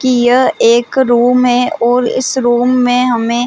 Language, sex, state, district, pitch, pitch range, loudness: Hindi, female, Chhattisgarh, Bilaspur, 245 Hz, 240-250 Hz, -11 LUFS